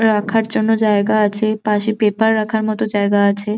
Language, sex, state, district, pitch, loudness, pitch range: Bengali, male, West Bengal, Jhargram, 215 Hz, -16 LUFS, 210-220 Hz